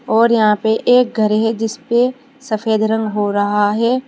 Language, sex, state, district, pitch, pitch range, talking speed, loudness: Hindi, female, Uttar Pradesh, Saharanpur, 220 Hz, 215-240 Hz, 175 wpm, -16 LUFS